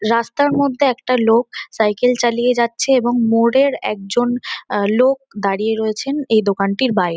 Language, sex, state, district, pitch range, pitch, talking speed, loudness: Bengali, female, West Bengal, North 24 Parganas, 220-260 Hz, 240 Hz, 140 wpm, -17 LUFS